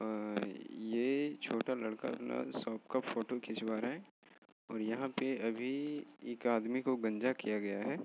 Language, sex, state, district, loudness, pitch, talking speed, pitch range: Hindi, male, Maharashtra, Aurangabad, -38 LUFS, 115 Hz, 165 wpm, 110-130 Hz